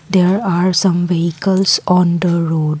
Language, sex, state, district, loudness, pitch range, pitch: English, female, Assam, Kamrup Metropolitan, -14 LUFS, 170-185 Hz, 180 Hz